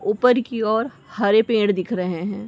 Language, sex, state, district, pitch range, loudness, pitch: Hindi, female, Uttar Pradesh, Ghazipur, 205-230 Hz, -20 LUFS, 215 Hz